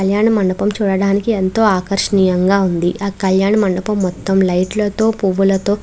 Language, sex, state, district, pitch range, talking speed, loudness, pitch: Telugu, female, Andhra Pradesh, Krishna, 190-205 Hz, 165 wpm, -15 LUFS, 195 Hz